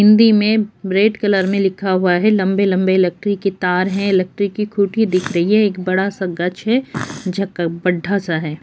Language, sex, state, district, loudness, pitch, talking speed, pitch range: Hindi, female, Uttar Pradesh, Jyotiba Phule Nagar, -17 LUFS, 195 Hz, 180 wpm, 185-205 Hz